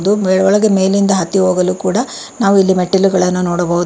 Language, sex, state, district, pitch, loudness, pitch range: Kannada, female, Karnataka, Bangalore, 190 Hz, -13 LUFS, 180-195 Hz